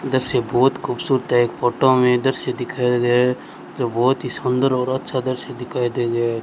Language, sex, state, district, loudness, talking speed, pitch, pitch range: Hindi, male, Rajasthan, Bikaner, -20 LUFS, 225 wpm, 125 Hz, 120-130 Hz